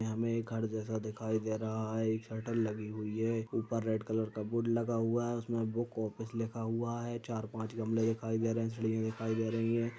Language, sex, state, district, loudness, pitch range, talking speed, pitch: Hindi, male, Uttar Pradesh, Hamirpur, -36 LUFS, 110-115 Hz, 240 wpm, 115 Hz